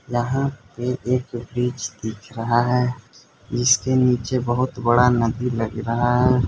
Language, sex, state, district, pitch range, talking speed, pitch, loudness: Hindi, male, Arunachal Pradesh, Lower Dibang Valley, 120-125 Hz, 140 wpm, 125 Hz, -21 LUFS